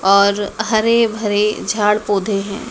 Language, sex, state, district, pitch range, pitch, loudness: Hindi, female, Madhya Pradesh, Dhar, 200-220 Hz, 210 Hz, -16 LUFS